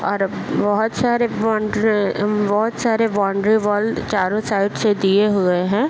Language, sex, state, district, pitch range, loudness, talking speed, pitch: Hindi, male, Bihar, Bhagalpur, 200-220 Hz, -18 LUFS, 130 wpm, 210 Hz